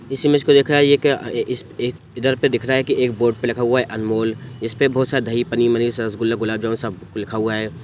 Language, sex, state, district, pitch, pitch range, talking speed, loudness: Hindi, male, Bihar, Sitamarhi, 120 Hz, 115-130 Hz, 270 wpm, -19 LUFS